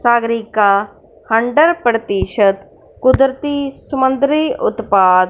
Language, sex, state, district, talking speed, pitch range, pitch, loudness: Hindi, female, Punjab, Fazilka, 70 wpm, 205-270 Hz, 235 Hz, -15 LUFS